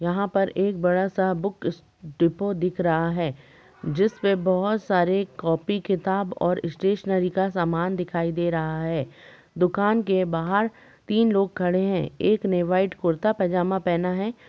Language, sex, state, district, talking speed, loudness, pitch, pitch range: Hindi, female, Uttar Pradesh, Jalaun, 160 wpm, -24 LUFS, 185 Hz, 170-195 Hz